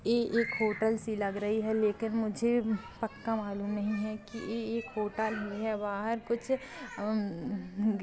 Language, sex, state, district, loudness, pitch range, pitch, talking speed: Hindi, male, Chhattisgarh, Kabirdham, -33 LUFS, 210-230 Hz, 220 Hz, 165 wpm